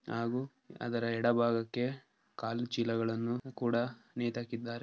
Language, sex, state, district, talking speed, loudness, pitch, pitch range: Kannada, male, Karnataka, Dharwad, 75 wpm, -35 LUFS, 120 Hz, 115-120 Hz